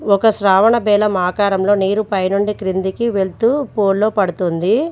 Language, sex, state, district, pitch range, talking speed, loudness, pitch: Telugu, female, Telangana, Mahabubabad, 190-215 Hz, 135 wpm, -16 LUFS, 200 Hz